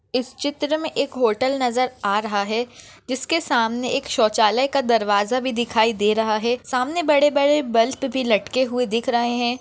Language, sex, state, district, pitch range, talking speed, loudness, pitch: Hindi, female, Maharashtra, Nagpur, 230-265 Hz, 185 wpm, -21 LUFS, 250 Hz